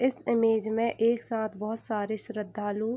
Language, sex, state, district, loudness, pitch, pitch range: Hindi, female, Bihar, Gopalganj, -29 LUFS, 225 Hz, 215-230 Hz